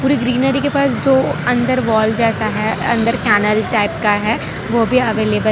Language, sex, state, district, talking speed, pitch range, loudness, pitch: Hindi, female, Gujarat, Valsad, 185 wpm, 215-255 Hz, -15 LUFS, 230 Hz